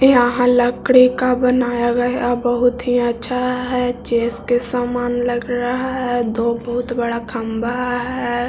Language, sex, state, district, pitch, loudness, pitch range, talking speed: Hindi, male, Bihar, Jahanabad, 245 Hz, -18 LUFS, 240-250 Hz, 140 wpm